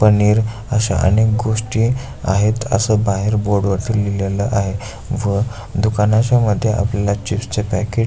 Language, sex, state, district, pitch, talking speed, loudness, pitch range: Marathi, male, Maharashtra, Aurangabad, 105 Hz, 135 wpm, -17 LUFS, 100-110 Hz